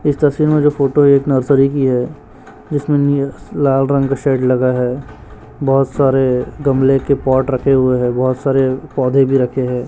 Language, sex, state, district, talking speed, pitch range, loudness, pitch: Hindi, male, Chhattisgarh, Raipur, 190 wpm, 130-140 Hz, -14 LUFS, 135 Hz